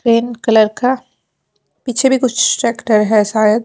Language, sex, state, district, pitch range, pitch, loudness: Hindi, female, Haryana, Jhajjar, 220-250 Hz, 230 Hz, -14 LUFS